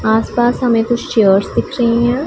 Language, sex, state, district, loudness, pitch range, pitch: Hindi, female, Punjab, Pathankot, -14 LUFS, 220-240 Hz, 235 Hz